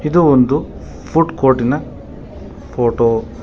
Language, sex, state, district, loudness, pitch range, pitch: Kannada, male, Karnataka, Bangalore, -15 LUFS, 95-140 Hz, 120 Hz